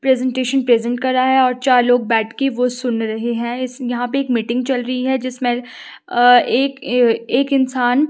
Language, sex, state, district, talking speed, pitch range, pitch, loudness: Hindi, female, Himachal Pradesh, Shimla, 205 wpm, 240-260 Hz, 250 Hz, -17 LUFS